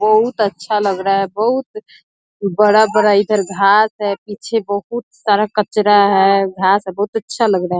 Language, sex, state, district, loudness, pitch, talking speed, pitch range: Hindi, female, Bihar, East Champaran, -15 LUFS, 205 Hz, 170 wpm, 195-215 Hz